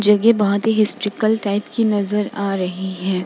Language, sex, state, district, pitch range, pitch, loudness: Hindi, female, Bihar, Vaishali, 200-215 Hz, 205 Hz, -19 LUFS